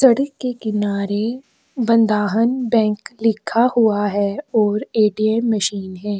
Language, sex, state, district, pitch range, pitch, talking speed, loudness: Hindi, female, Chhattisgarh, Korba, 205-235 Hz, 220 Hz, 115 wpm, -19 LUFS